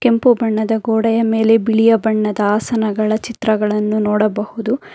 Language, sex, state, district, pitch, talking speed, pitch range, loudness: Kannada, female, Karnataka, Bangalore, 220 Hz, 110 wpm, 215-225 Hz, -16 LUFS